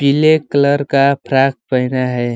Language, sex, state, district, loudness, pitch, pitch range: Hindi, male, Uttar Pradesh, Ghazipur, -14 LUFS, 135 Hz, 130-140 Hz